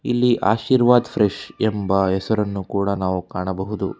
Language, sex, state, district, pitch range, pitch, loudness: Kannada, male, Karnataka, Bangalore, 95-115 Hz, 100 Hz, -20 LUFS